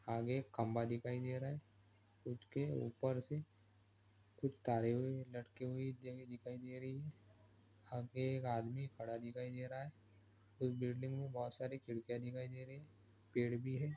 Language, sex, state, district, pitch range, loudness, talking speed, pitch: Hindi, male, Andhra Pradesh, Srikakulam, 115-130 Hz, -44 LUFS, 165 wpm, 125 Hz